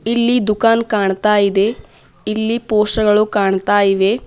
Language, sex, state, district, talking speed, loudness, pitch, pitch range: Kannada, female, Karnataka, Bidar, 125 wpm, -15 LUFS, 210 Hz, 200-225 Hz